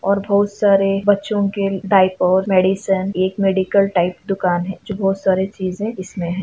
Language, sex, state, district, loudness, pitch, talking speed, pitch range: Hindi, female, Chhattisgarh, Bastar, -18 LUFS, 195 Hz, 160 wpm, 185-200 Hz